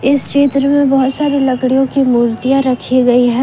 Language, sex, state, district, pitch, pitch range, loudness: Hindi, female, Jharkhand, Ranchi, 265 Hz, 255-275 Hz, -12 LUFS